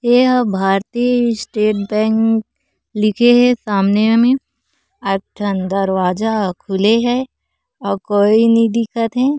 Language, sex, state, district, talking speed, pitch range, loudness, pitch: Chhattisgarhi, female, Chhattisgarh, Korba, 115 wpm, 200-240 Hz, -15 LUFS, 220 Hz